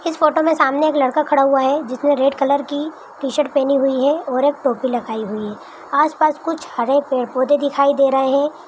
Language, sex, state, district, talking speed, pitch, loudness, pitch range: Hindi, female, Bihar, Araria, 220 wpm, 280 Hz, -17 LUFS, 270-300 Hz